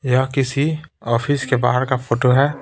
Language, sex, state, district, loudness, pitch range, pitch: Hindi, male, Bihar, Patna, -19 LUFS, 125-140 Hz, 130 Hz